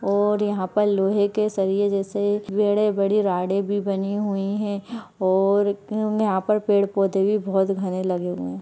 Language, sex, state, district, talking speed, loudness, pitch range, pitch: Hindi, female, Maharashtra, Nagpur, 165 wpm, -22 LUFS, 195-210 Hz, 200 Hz